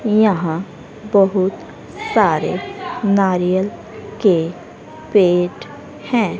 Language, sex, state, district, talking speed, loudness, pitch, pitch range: Hindi, female, Haryana, Rohtak, 65 wpm, -17 LUFS, 195 Hz, 180-215 Hz